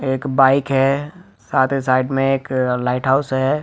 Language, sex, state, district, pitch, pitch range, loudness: Hindi, male, Jharkhand, Jamtara, 135 Hz, 130-140 Hz, -18 LUFS